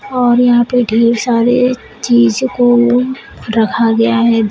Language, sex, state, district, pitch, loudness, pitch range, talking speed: Hindi, female, Uttar Pradesh, Shamli, 240 Hz, -12 LUFS, 230-245 Hz, 135 wpm